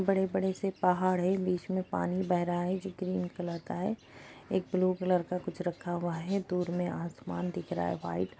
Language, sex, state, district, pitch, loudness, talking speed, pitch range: Hindi, female, Uttarakhand, Uttarkashi, 180 Hz, -32 LUFS, 230 wpm, 175-185 Hz